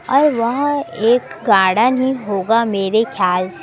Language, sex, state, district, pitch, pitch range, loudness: Hindi, female, Chhattisgarh, Raipur, 230 Hz, 195-255 Hz, -16 LUFS